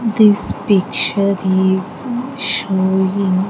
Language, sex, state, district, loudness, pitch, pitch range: English, female, Andhra Pradesh, Sri Satya Sai, -16 LUFS, 200 Hz, 190-215 Hz